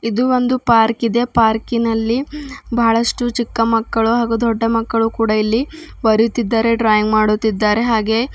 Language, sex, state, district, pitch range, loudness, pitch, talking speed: Kannada, female, Karnataka, Bidar, 225-240 Hz, -16 LUFS, 230 Hz, 115 wpm